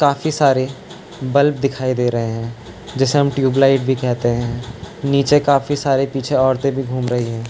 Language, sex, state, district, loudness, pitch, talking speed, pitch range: Hindi, male, Uttarakhand, Tehri Garhwal, -17 LUFS, 135 Hz, 185 wpm, 125-140 Hz